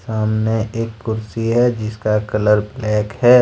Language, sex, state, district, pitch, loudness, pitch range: Hindi, male, Jharkhand, Deoghar, 110 Hz, -18 LUFS, 105-115 Hz